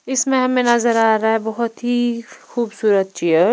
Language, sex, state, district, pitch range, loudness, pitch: Hindi, female, Punjab, Pathankot, 220-240 Hz, -18 LUFS, 235 Hz